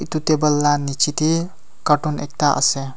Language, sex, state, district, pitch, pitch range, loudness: Nagamese, male, Nagaland, Kohima, 150 Hz, 145-155 Hz, -19 LUFS